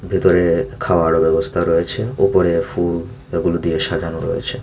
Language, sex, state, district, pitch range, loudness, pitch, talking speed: Bengali, male, Tripura, Unakoti, 85-100 Hz, -17 LUFS, 85 Hz, 130 wpm